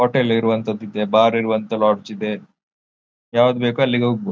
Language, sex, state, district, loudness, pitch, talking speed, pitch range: Kannada, male, Karnataka, Dakshina Kannada, -19 LUFS, 110 Hz, 150 wpm, 105-120 Hz